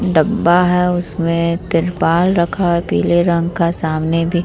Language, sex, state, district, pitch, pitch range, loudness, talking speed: Hindi, female, Bihar, Vaishali, 170 Hz, 170-180 Hz, -15 LUFS, 150 wpm